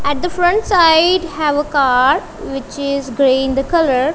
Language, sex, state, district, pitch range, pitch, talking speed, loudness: English, female, Punjab, Kapurthala, 270-340 Hz, 290 Hz, 190 wpm, -14 LUFS